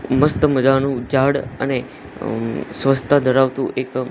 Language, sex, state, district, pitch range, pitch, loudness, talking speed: Gujarati, male, Gujarat, Gandhinagar, 130-135 Hz, 135 Hz, -18 LUFS, 115 wpm